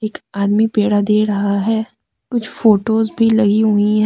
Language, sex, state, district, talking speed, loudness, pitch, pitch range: Hindi, female, Jharkhand, Deoghar, 165 wpm, -16 LUFS, 215 Hz, 205-220 Hz